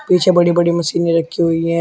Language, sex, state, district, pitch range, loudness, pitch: Hindi, male, Uttar Pradesh, Shamli, 165-175 Hz, -15 LUFS, 170 Hz